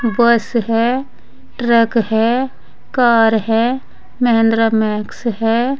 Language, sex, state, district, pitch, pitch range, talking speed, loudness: Hindi, female, Uttar Pradesh, Saharanpur, 230 Hz, 225-240 Hz, 95 wpm, -15 LUFS